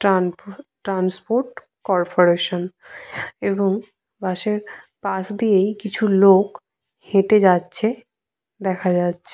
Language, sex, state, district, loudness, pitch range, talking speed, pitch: Bengali, female, West Bengal, Purulia, -20 LUFS, 185-210 Hz, 85 wpm, 195 Hz